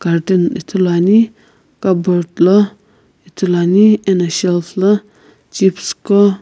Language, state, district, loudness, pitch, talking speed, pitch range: Sumi, Nagaland, Kohima, -14 LUFS, 185 Hz, 105 wpm, 175-205 Hz